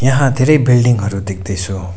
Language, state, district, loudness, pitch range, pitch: Nepali, West Bengal, Darjeeling, -14 LUFS, 95-130 Hz, 115 Hz